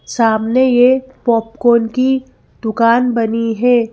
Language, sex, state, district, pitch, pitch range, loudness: Hindi, female, Madhya Pradesh, Bhopal, 235 Hz, 230-255 Hz, -14 LUFS